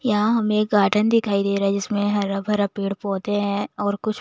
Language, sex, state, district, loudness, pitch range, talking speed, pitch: Hindi, female, Bihar, Patna, -21 LUFS, 200-210 Hz, 215 wpm, 205 Hz